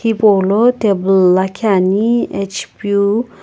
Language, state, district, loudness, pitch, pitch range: Sumi, Nagaland, Kohima, -14 LUFS, 200 Hz, 195-220 Hz